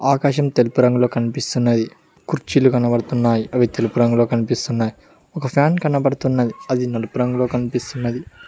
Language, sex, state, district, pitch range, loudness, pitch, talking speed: Telugu, male, Telangana, Mahabubabad, 120-130 Hz, -19 LUFS, 125 Hz, 120 wpm